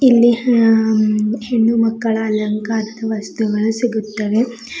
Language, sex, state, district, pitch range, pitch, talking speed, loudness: Kannada, female, Karnataka, Bidar, 215-230 Hz, 220 Hz, 85 wpm, -16 LUFS